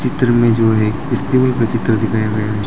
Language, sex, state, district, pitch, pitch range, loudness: Hindi, male, Arunachal Pradesh, Lower Dibang Valley, 115 Hz, 110-125 Hz, -15 LUFS